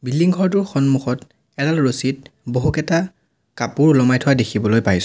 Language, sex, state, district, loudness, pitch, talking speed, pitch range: Assamese, male, Assam, Sonitpur, -18 LUFS, 135 Hz, 130 wpm, 125-155 Hz